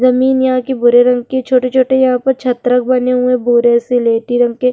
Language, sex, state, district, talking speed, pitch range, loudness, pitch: Hindi, female, Uttarakhand, Tehri Garhwal, 150 wpm, 245-255 Hz, -12 LUFS, 250 Hz